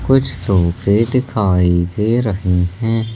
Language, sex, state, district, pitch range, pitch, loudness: Hindi, male, Madhya Pradesh, Katni, 90-115 Hz, 105 Hz, -16 LUFS